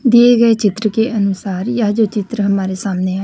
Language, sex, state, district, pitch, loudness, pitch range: Hindi, female, Chhattisgarh, Raipur, 210 Hz, -15 LUFS, 195-225 Hz